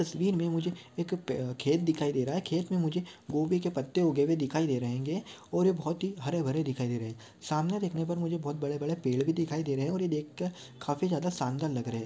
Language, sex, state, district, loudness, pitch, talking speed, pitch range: Hindi, male, Maharashtra, Aurangabad, -31 LUFS, 155 Hz, 255 wpm, 135-175 Hz